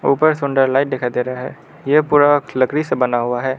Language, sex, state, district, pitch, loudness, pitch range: Hindi, male, Arunachal Pradesh, Lower Dibang Valley, 135 Hz, -16 LUFS, 125-145 Hz